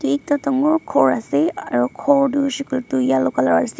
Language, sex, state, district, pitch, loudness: Nagamese, female, Nagaland, Dimapur, 275 Hz, -18 LUFS